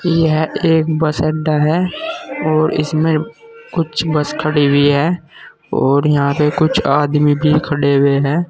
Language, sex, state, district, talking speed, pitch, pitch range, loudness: Hindi, male, Uttar Pradesh, Saharanpur, 150 wpm, 155 Hz, 145-165 Hz, -15 LUFS